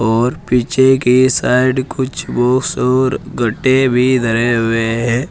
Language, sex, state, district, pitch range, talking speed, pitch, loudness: Hindi, male, Uttar Pradesh, Saharanpur, 120-130 Hz, 135 wpm, 125 Hz, -14 LUFS